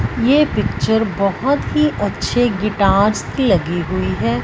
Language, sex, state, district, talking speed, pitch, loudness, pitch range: Hindi, female, Punjab, Fazilka, 135 wpm, 210 Hz, -17 LUFS, 185-250 Hz